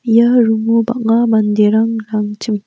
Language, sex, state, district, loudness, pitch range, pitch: Garo, female, Meghalaya, West Garo Hills, -14 LUFS, 215-230 Hz, 225 Hz